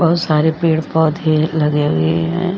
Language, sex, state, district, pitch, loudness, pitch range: Hindi, female, Uttar Pradesh, Jyotiba Phule Nagar, 155 Hz, -15 LUFS, 150-165 Hz